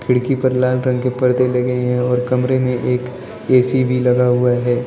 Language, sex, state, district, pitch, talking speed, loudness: Hindi, male, Arunachal Pradesh, Lower Dibang Valley, 125 Hz, 210 wpm, -16 LUFS